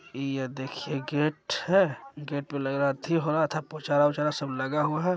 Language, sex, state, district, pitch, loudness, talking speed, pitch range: Hindi, male, Bihar, Jahanabad, 145 Hz, -28 LUFS, 175 wpm, 135-155 Hz